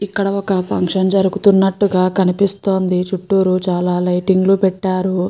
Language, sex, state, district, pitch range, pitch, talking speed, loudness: Telugu, female, Andhra Pradesh, Guntur, 185-195 Hz, 190 Hz, 115 wpm, -15 LUFS